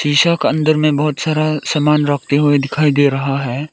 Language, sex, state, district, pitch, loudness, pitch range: Hindi, male, Arunachal Pradesh, Lower Dibang Valley, 150 Hz, -15 LUFS, 145-155 Hz